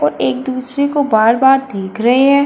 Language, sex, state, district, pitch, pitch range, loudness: Hindi, female, Uttar Pradesh, Jyotiba Phule Nagar, 255 Hz, 220-275 Hz, -14 LUFS